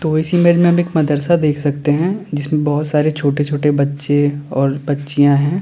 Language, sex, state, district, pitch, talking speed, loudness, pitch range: Hindi, male, Uttar Pradesh, Lalitpur, 145 Hz, 205 wpm, -15 LUFS, 145-160 Hz